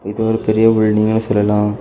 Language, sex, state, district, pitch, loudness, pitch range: Tamil, male, Tamil Nadu, Kanyakumari, 110 Hz, -15 LUFS, 105-110 Hz